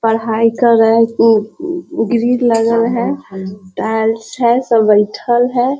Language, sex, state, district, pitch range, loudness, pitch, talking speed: Hindi, female, Bihar, Sitamarhi, 220-240 Hz, -13 LUFS, 230 Hz, 135 wpm